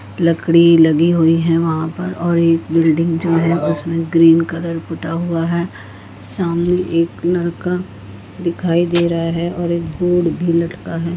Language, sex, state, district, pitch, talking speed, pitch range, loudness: Hindi, female, Goa, North and South Goa, 165 Hz, 165 wpm, 165-170 Hz, -16 LUFS